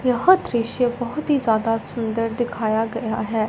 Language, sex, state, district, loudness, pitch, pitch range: Hindi, female, Punjab, Fazilka, -21 LUFS, 230 Hz, 225-250 Hz